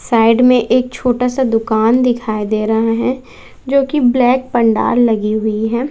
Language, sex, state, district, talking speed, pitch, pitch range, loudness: Hindi, female, Bihar, West Champaran, 160 wpm, 240 Hz, 225-250 Hz, -14 LUFS